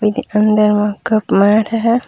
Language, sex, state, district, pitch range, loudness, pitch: Chhattisgarhi, female, Chhattisgarh, Raigarh, 210-225 Hz, -14 LUFS, 215 Hz